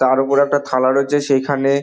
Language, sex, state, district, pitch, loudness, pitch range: Bengali, male, West Bengal, Dakshin Dinajpur, 140 Hz, -16 LUFS, 130-140 Hz